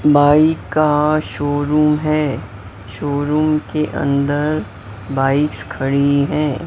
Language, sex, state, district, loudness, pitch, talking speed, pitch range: Hindi, male, Maharashtra, Mumbai Suburban, -17 LUFS, 145 Hz, 90 wpm, 135-150 Hz